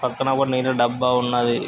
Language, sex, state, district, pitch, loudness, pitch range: Telugu, male, Andhra Pradesh, Krishna, 125 Hz, -20 LUFS, 120-130 Hz